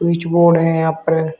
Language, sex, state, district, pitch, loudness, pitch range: Hindi, male, Uttar Pradesh, Shamli, 165 Hz, -15 LUFS, 160-170 Hz